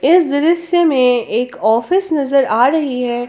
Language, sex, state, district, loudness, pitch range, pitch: Hindi, female, Jharkhand, Palamu, -14 LUFS, 245-325 Hz, 275 Hz